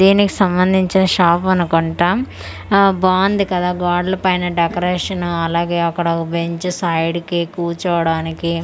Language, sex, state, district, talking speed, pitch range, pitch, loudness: Telugu, female, Andhra Pradesh, Manyam, 125 wpm, 170-185 Hz, 175 Hz, -16 LUFS